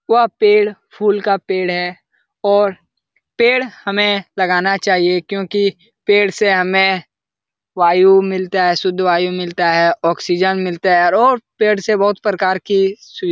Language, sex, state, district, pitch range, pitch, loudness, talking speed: Hindi, male, Uttar Pradesh, Etah, 180-205 Hz, 195 Hz, -15 LUFS, 150 wpm